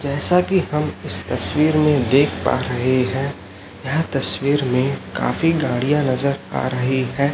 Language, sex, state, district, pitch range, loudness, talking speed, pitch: Hindi, male, Chhattisgarh, Raipur, 125-150 Hz, -19 LUFS, 155 wpm, 135 Hz